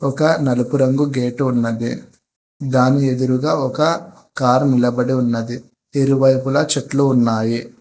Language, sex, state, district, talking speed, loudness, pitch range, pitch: Telugu, male, Telangana, Hyderabad, 105 wpm, -17 LUFS, 125-140 Hz, 130 Hz